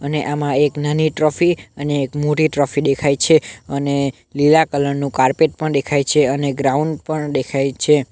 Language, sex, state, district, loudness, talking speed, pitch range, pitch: Gujarati, male, Gujarat, Navsari, -17 LUFS, 175 wpm, 140-150 Hz, 145 Hz